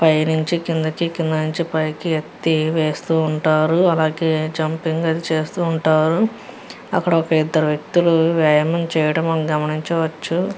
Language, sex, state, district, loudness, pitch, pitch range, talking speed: Telugu, female, Andhra Pradesh, Guntur, -19 LUFS, 160 Hz, 155-170 Hz, 45 wpm